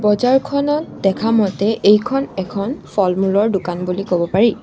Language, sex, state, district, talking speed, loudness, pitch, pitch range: Assamese, female, Assam, Sonitpur, 130 wpm, -17 LUFS, 205 Hz, 190-235 Hz